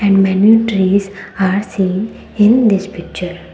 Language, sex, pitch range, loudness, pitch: English, female, 190-205 Hz, -14 LUFS, 195 Hz